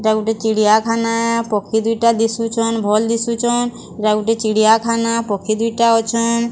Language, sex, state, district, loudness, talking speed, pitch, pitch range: Odia, female, Odisha, Sambalpur, -16 LUFS, 130 wpm, 230 Hz, 220-230 Hz